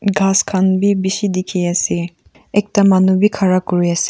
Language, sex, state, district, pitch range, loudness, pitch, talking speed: Nagamese, female, Nagaland, Kohima, 185-200 Hz, -15 LUFS, 190 Hz, 145 wpm